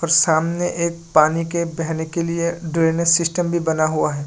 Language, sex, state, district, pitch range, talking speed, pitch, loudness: Hindi, male, Assam, Kamrup Metropolitan, 160-170 Hz, 180 wpm, 165 Hz, -19 LUFS